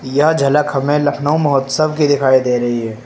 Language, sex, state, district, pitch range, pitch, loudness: Hindi, male, Uttar Pradesh, Lucknow, 130-150 Hz, 140 Hz, -15 LUFS